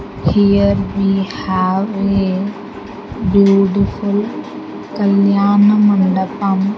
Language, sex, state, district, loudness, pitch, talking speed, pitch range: English, female, Andhra Pradesh, Sri Satya Sai, -14 LUFS, 200 Hz, 60 wpm, 195-200 Hz